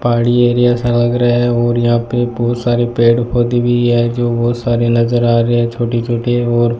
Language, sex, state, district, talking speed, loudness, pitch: Hindi, male, Rajasthan, Bikaner, 240 wpm, -14 LUFS, 120 Hz